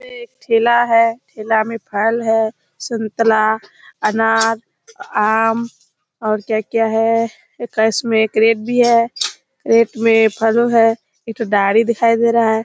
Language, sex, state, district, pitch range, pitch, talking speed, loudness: Hindi, female, Bihar, Kishanganj, 220-235 Hz, 225 Hz, 140 wpm, -16 LUFS